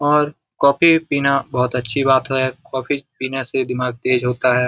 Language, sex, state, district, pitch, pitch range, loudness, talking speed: Hindi, male, Bihar, Jamui, 130 Hz, 125-140 Hz, -18 LUFS, 195 wpm